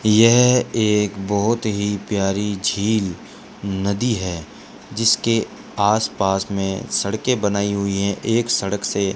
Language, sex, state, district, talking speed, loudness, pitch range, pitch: Hindi, male, Rajasthan, Bikaner, 125 wpm, -19 LUFS, 100-110 Hz, 100 Hz